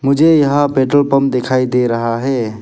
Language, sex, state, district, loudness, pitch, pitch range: Hindi, male, Arunachal Pradesh, Papum Pare, -14 LUFS, 135 Hz, 125-140 Hz